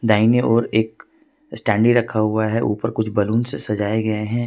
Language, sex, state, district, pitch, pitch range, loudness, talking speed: Hindi, male, Jharkhand, Ranchi, 110 Hz, 105-120 Hz, -19 LUFS, 175 wpm